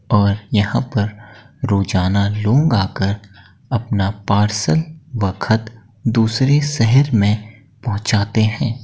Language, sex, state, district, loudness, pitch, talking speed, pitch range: Hindi, male, Uttar Pradesh, Etah, -18 LUFS, 110 Hz, 100 wpm, 100-120 Hz